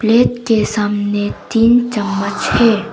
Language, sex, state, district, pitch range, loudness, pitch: Hindi, female, Arunachal Pradesh, Papum Pare, 205-230 Hz, -15 LUFS, 220 Hz